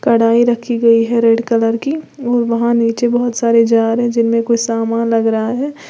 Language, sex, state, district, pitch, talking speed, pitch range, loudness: Hindi, female, Uttar Pradesh, Lalitpur, 230 Hz, 205 wpm, 230-240 Hz, -14 LUFS